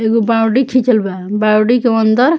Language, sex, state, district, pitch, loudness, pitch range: Bhojpuri, female, Bihar, Muzaffarpur, 230 Hz, -13 LUFS, 215-245 Hz